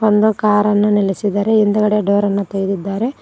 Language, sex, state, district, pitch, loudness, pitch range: Kannada, female, Karnataka, Koppal, 210 Hz, -15 LUFS, 200-210 Hz